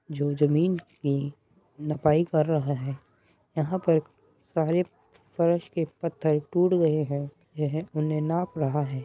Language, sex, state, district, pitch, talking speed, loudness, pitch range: Hindi, male, Uttar Pradesh, Muzaffarnagar, 155 Hz, 140 wpm, -27 LUFS, 145-165 Hz